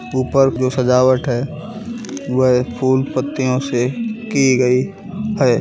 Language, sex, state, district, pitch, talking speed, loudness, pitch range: Hindi, male, Uttar Pradesh, Gorakhpur, 130 Hz, 120 wpm, -17 LUFS, 125-190 Hz